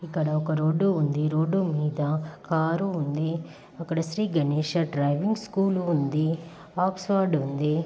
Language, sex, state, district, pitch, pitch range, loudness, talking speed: Telugu, female, Andhra Pradesh, Guntur, 160 Hz, 155-180 Hz, -26 LUFS, 105 wpm